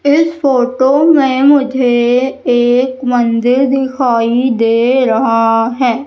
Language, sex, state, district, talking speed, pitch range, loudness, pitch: Hindi, male, Madhya Pradesh, Umaria, 100 wpm, 240-270 Hz, -11 LUFS, 255 Hz